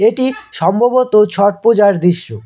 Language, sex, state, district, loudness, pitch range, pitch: Bengali, male, West Bengal, Cooch Behar, -13 LUFS, 190-230 Hz, 210 Hz